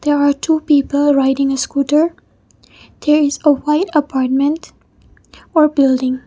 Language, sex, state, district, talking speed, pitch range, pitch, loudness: English, female, Mizoram, Aizawl, 135 wpm, 275-300 Hz, 290 Hz, -15 LUFS